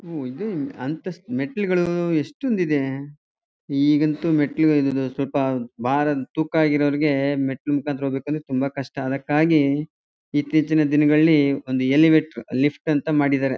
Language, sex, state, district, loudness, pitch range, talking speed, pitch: Kannada, male, Karnataka, Chamarajanagar, -21 LUFS, 140-155 Hz, 115 wpm, 145 Hz